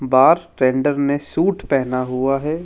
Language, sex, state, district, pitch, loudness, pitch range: Hindi, male, Rajasthan, Jaipur, 135 Hz, -18 LUFS, 130-150 Hz